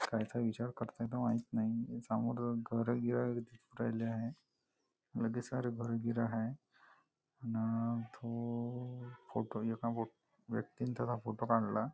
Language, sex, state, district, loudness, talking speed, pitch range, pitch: Marathi, male, Maharashtra, Nagpur, -39 LUFS, 130 wpm, 115-120 Hz, 115 Hz